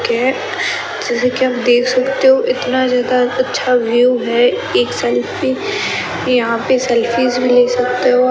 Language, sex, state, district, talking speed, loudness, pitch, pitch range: Hindi, female, Rajasthan, Bikaner, 150 wpm, -14 LUFS, 250 Hz, 240-255 Hz